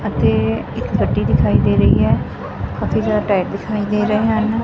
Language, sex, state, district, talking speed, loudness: Punjabi, female, Punjab, Fazilka, 195 wpm, -17 LUFS